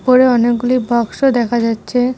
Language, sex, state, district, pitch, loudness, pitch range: Bengali, female, West Bengal, Cooch Behar, 240 Hz, -14 LUFS, 235-255 Hz